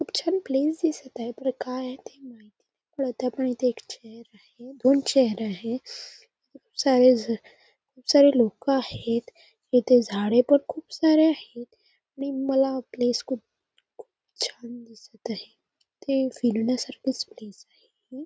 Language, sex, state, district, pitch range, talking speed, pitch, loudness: Marathi, female, Maharashtra, Nagpur, 235-275 Hz, 150 wpm, 255 Hz, -24 LUFS